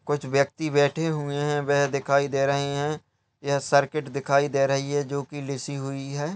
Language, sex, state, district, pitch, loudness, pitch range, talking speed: Hindi, male, Uttar Pradesh, Hamirpur, 140 Hz, -25 LUFS, 140-145 Hz, 190 wpm